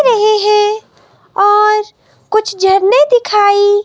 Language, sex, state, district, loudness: Hindi, female, Himachal Pradesh, Shimla, -11 LUFS